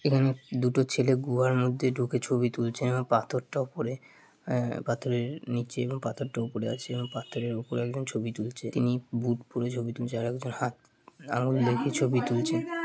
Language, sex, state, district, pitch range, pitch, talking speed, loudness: Bengali, male, West Bengal, Jalpaiguri, 120-130 Hz, 125 Hz, 175 wpm, -30 LUFS